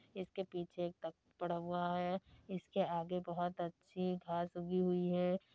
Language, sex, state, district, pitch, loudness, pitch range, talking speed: Hindi, female, Uttar Pradesh, Deoria, 180 Hz, -41 LUFS, 175-185 Hz, 175 wpm